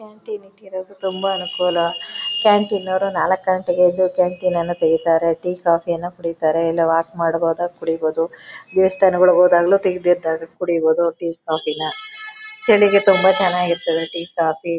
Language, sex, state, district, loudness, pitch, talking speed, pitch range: Kannada, female, Karnataka, Chamarajanagar, -18 LUFS, 180 Hz, 125 wpm, 165-190 Hz